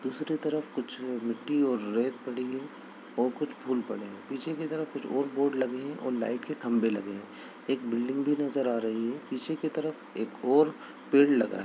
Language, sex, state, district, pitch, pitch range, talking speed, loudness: Hindi, male, Bihar, Begusarai, 130 Hz, 120-145 Hz, 215 wpm, -30 LUFS